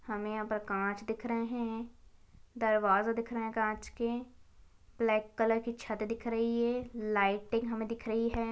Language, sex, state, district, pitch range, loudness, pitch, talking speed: Hindi, female, Chhattisgarh, Balrampur, 215-235 Hz, -34 LUFS, 225 Hz, 175 wpm